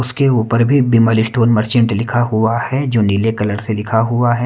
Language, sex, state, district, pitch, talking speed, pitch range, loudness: Hindi, male, Haryana, Rohtak, 115 Hz, 215 wpm, 110-120 Hz, -15 LUFS